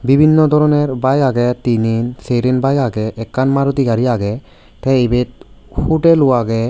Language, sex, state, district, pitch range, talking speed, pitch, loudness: Chakma, male, Tripura, West Tripura, 120-140 Hz, 150 wpm, 130 Hz, -14 LUFS